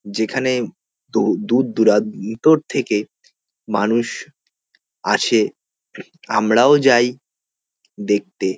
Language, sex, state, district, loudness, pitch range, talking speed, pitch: Bengali, male, West Bengal, North 24 Parganas, -18 LUFS, 100-130 Hz, 75 wpm, 110 Hz